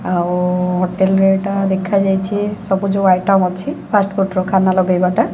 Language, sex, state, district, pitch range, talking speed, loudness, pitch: Odia, female, Odisha, Sambalpur, 185-195 Hz, 145 wpm, -16 LUFS, 190 Hz